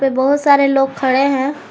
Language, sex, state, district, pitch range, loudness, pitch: Hindi, female, Jharkhand, Garhwa, 270-280 Hz, -14 LUFS, 275 Hz